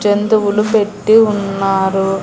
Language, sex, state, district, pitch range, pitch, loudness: Telugu, female, Andhra Pradesh, Annamaya, 195-215 Hz, 205 Hz, -13 LUFS